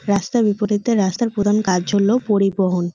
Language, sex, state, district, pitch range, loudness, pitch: Bengali, female, West Bengal, North 24 Parganas, 190-210 Hz, -18 LUFS, 205 Hz